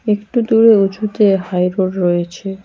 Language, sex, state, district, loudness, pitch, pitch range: Bengali, female, West Bengal, Cooch Behar, -15 LUFS, 195 Hz, 185-215 Hz